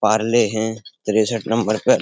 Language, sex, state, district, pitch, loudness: Hindi, male, Uttar Pradesh, Etah, 110 Hz, -19 LUFS